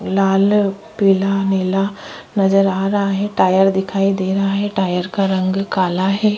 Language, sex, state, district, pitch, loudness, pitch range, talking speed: Hindi, female, Chhattisgarh, Korba, 195 Hz, -17 LUFS, 190-200 Hz, 160 wpm